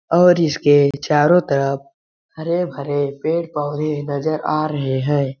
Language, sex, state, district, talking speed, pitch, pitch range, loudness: Hindi, male, Chhattisgarh, Balrampur, 135 wpm, 145 Hz, 140-160 Hz, -18 LUFS